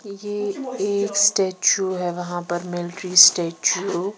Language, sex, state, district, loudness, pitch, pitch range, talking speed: Hindi, female, Punjab, Pathankot, -20 LUFS, 190 Hz, 175-205 Hz, 115 wpm